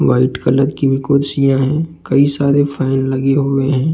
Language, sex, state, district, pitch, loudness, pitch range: Hindi, male, Uttar Pradesh, Jalaun, 135 Hz, -15 LUFS, 135-140 Hz